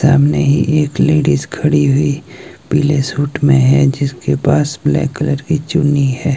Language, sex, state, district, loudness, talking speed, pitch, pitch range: Hindi, male, Himachal Pradesh, Shimla, -14 LUFS, 160 wpm, 145 Hz, 135-150 Hz